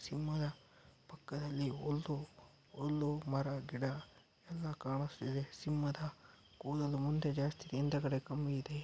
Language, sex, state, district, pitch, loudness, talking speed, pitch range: Kannada, male, Karnataka, Mysore, 145 Hz, -40 LUFS, 100 wpm, 140-150 Hz